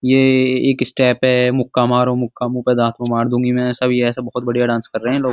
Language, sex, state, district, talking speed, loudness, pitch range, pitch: Hindi, male, Uttar Pradesh, Muzaffarnagar, 280 wpm, -16 LUFS, 120-125 Hz, 125 Hz